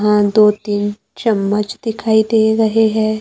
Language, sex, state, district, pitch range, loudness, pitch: Hindi, male, Maharashtra, Gondia, 210-220 Hz, -15 LUFS, 215 Hz